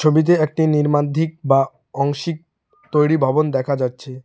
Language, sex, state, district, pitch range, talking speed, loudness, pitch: Bengali, male, West Bengal, Alipurduar, 135-160 Hz, 115 wpm, -18 LUFS, 150 Hz